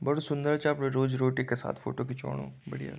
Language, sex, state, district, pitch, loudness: Garhwali, male, Uttarakhand, Tehri Garhwal, 135 Hz, -31 LUFS